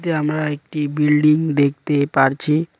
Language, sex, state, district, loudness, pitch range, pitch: Bengali, male, West Bengal, Cooch Behar, -18 LUFS, 145-155 Hz, 150 Hz